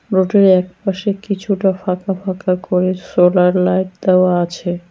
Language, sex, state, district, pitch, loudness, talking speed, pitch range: Bengali, female, West Bengal, Cooch Behar, 185 Hz, -16 LUFS, 120 wpm, 180-195 Hz